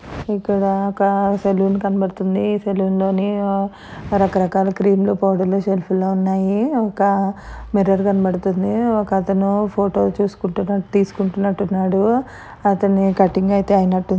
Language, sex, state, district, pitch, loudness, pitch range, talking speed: Telugu, female, Andhra Pradesh, Chittoor, 195 Hz, -18 LUFS, 195-200 Hz, 75 wpm